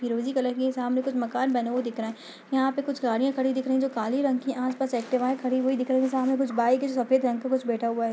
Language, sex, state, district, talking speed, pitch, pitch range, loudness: Hindi, female, Uttar Pradesh, Budaun, 315 wpm, 255 Hz, 245-265 Hz, -26 LUFS